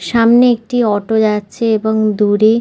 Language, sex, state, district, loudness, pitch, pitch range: Bengali, female, West Bengal, North 24 Parganas, -13 LUFS, 220 Hz, 210-230 Hz